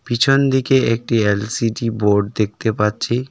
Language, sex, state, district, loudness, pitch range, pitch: Bengali, male, West Bengal, Darjeeling, -17 LUFS, 105-125 Hz, 115 Hz